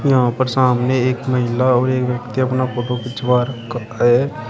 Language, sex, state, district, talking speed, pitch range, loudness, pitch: Hindi, male, Uttar Pradesh, Shamli, 175 wpm, 120-130 Hz, -18 LUFS, 125 Hz